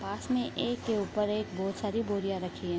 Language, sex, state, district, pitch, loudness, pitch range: Hindi, female, Bihar, Bhagalpur, 210 Hz, -32 LUFS, 195-225 Hz